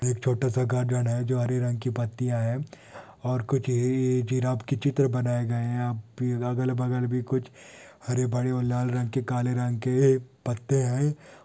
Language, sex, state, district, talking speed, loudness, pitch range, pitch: Hindi, male, Andhra Pradesh, Anantapur, 190 wpm, -27 LUFS, 125-130 Hz, 125 Hz